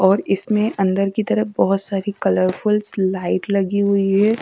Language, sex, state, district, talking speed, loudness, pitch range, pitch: Hindi, female, Bihar, Katihar, 165 wpm, -19 LUFS, 190-205 Hz, 195 Hz